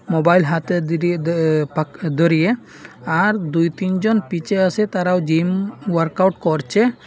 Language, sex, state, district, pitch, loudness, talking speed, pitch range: Bengali, male, Assam, Hailakandi, 175 Hz, -18 LUFS, 135 wpm, 165-190 Hz